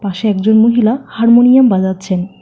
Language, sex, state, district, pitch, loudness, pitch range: Bengali, female, West Bengal, Alipurduar, 220 Hz, -11 LUFS, 190-235 Hz